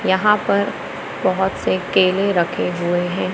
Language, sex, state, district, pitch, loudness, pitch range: Hindi, male, Madhya Pradesh, Katni, 185 Hz, -19 LUFS, 175-200 Hz